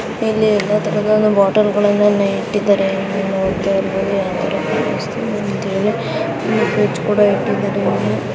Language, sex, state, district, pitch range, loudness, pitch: Kannada, female, Karnataka, Dakshina Kannada, 195-210 Hz, -16 LUFS, 205 Hz